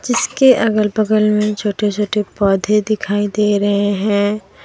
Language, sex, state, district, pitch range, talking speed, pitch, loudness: Hindi, female, Jharkhand, Deoghar, 205-215 Hz, 140 wpm, 210 Hz, -16 LUFS